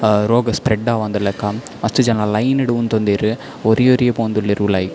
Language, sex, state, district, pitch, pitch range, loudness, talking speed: Tulu, male, Karnataka, Dakshina Kannada, 110 Hz, 105-120 Hz, -17 LUFS, 145 wpm